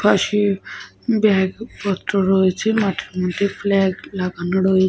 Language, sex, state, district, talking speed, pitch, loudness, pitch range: Bengali, female, Jharkhand, Sahebganj, 145 wpm, 195 Hz, -19 LUFS, 185-205 Hz